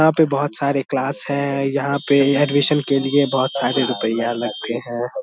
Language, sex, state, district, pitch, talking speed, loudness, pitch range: Hindi, male, Bihar, Samastipur, 140 Hz, 185 wpm, -19 LUFS, 130-145 Hz